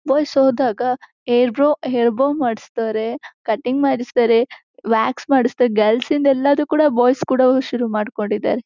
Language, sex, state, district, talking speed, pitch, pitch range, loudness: Kannada, female, Karnataka, Shimoga, 125 wpm, 250 Hz, 235-275 Hz, -18 LUFS